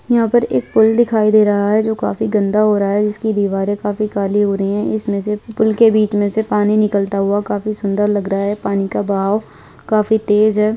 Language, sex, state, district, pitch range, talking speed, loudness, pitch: Hindi, male, Bihar, Muzaffarpur, 200-215 Hz, 235 wpm, -16 LUFS, 210 Hz